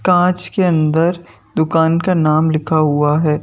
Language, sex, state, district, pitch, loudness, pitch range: Hindi, male, Madhya Pradesh, Bhopal, 160 Hz, -15 LUFS, 155-175 Hz